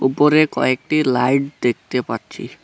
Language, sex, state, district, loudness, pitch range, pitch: Bengali, male, West Bengal, Cooch Behar, -18 LUFS, 125-150 Hz, 130 Hz